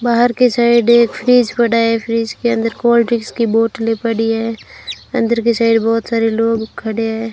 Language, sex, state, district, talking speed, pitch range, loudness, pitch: Hindi, female, Rajasthan, Bikaner, 195 wpm, 225-235 Hz, -15 LUFS, 230 Hz